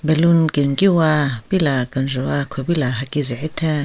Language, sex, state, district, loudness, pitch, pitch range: Rengma, female, Nagaland, Kohima, -18 LUFS, 145 Hz, 135-160 Hz